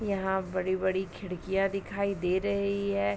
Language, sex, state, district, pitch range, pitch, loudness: Hindi, female, Uttar Pradesh, Ghazipur, 185-200 Hz, 190 Hz, -30 LUFS